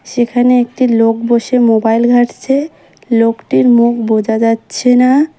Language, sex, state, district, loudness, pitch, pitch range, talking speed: Bengali, female, West Bengal, Cooch Behar, -12 LUFS, 240 Hz, 225-250 Hz, 120 wpm